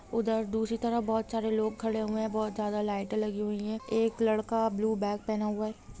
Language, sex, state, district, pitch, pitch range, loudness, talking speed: Hindi, female, Jharkhand, Jamtara, 220 Hz, 215-225 Hz, -31 LUFS, 220 wpm